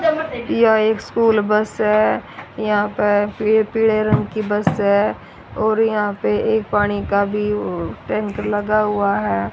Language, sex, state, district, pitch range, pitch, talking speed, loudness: Hindi, female, Haryana, Rohtak, 205-220 Hz, 210 Hz, 145 wpm, -18 LUFS